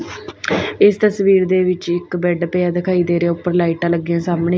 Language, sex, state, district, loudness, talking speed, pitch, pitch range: Punjabi, female, Punjab, Fazilka, -17 LUFS, 195 wpm, 175 Hz, 170-185 Hz